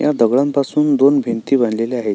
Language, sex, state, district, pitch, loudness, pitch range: Marathi, male, Maharashtra, Sindhudurg, 135 Hz, -16 LUFS, 115-140 Hz